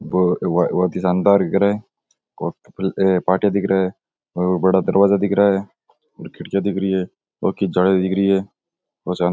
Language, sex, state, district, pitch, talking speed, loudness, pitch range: Rajasthani, male, Rajasthan, Nagaur, 95 Hz, 175 wpm, -19 LUFS, 90-100 Hz